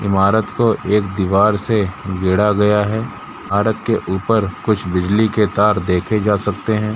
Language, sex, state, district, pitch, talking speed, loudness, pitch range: Hindi, male, Jharkhand, Jamtara, 105 Hz, 165 wpm, -17 LUFS, 95-110 Hz